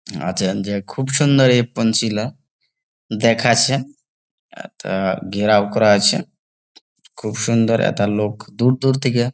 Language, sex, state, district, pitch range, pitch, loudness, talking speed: Bengali, male, West Bengal, Jalpaiguri, 105-130 Hz, 115 Hz, -17 LUFS, 115 wpm